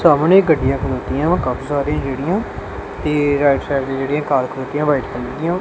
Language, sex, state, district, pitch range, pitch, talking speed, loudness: Punjabi, male, Punjab, Kapurthala, 135-150 Hz, 145 Hz, 170 wpm, -18 LUFS